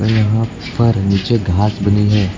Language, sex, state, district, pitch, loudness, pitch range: Hindi, male, Uttar Pradesh, Lucknow, 105 Hz, -15 LUFS, 100-115 Hz